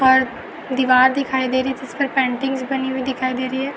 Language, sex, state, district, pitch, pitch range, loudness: Hindi, female, Uttar Pradesh, Muzaffarnagar, 265 Hz, 255-265 Hz, -19 LUFS